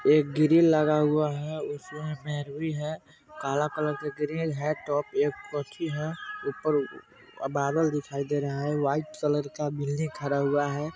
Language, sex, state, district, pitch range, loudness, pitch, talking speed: Hindi, male, Bihar, Vaishali, 145-155 Hz, -28 LUFS, 150 Hz, 160 wpm